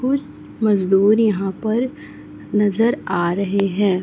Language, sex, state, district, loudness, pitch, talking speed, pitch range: Hindi, male, Chhattisgarh, Raipur, -19 LUFS, 205 Hz, 120 wpm, 195-225 Hz